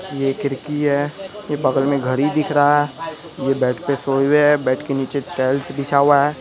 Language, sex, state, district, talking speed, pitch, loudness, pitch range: Hindi, male, Bihar, Araria, 215 wpm, 140 Hz, -18 LUFS, 135-150 Hz